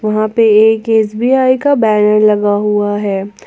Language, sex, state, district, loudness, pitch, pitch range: Hindi, female, Jharkhand, Garhwa, -11 LUFS, 215 Hz, 210-225 Hz